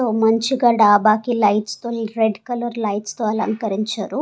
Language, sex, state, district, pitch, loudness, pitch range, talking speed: Telugu, female, Andhra Pradesh, Sri Satya Sai, 220 Hz, -19 LUFS, 210-235 Hz, 130 wpm